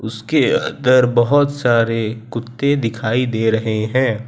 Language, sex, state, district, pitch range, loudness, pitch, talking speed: Hindi, male, Gujarat, Valsad, 110-130 Hz, -17 LUFS, 120 Hz, 125 wpm